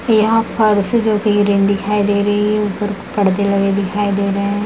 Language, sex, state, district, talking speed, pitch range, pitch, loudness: Hindi, female, Bihar, Lakhisarai, 180 wpm, 200-210 Hz, 205 Hz, -15 LUFS